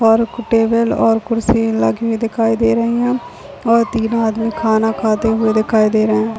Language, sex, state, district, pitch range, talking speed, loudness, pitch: Hindi, female, Chhattisgarh, Bilaspur, 220-230 Hz, 190 wpm, -15 LUFS, 225 Hz